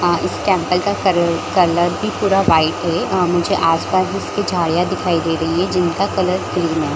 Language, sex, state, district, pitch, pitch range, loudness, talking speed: Hindi, female, Chhattisgarh, Bilaspur, 175 Hz, 170-185 Hz, -17 LUFS, 200 wpm